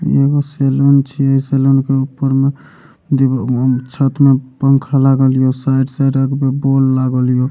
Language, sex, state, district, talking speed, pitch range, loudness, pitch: Maithili, male, Bihar, Supaul, 170 wpm, 130-140 Hz, -14 LUFS, 135 Hz